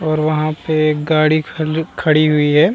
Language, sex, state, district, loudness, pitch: Hindi, male, Bihar, Vaishali, -15 LUFS, 155 Hz